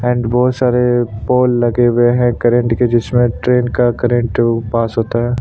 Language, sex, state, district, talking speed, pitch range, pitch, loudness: Hindi, male, Chhattisgarh, Sukma, 175 wpm, 120-125 Hz, 120 Hz, -14 LUFS